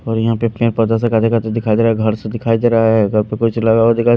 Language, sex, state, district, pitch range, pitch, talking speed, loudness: Hindi, male, Haryana, Rohtak, 110-115 Hz, 115 Hz, 245 wpm, -15 LUFS